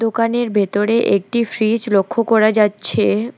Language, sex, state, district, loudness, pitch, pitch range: Bengali, female, West Bengal, Alipurduar, -16 LUFS, 220 Hz, 205-230 Hz